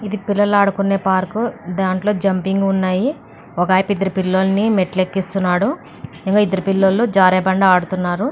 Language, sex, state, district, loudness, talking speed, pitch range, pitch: Telugu, female, Andhra Pradesh, Anantapur, -17 LUFS, 135 wpm, 185-205 Hz, 195 Hz